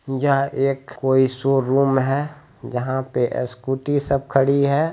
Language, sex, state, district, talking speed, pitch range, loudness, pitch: Hindi, male, Bihar, Jamui, 135 wpm, 130-140 Hz, -20 LUFS, 135 Hz